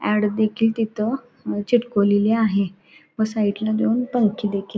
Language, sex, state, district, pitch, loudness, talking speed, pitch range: Marathi, female, Maharashtra, Solapur, 215 Hz, -21 LUFS, 150 wpm, 205-225 Hz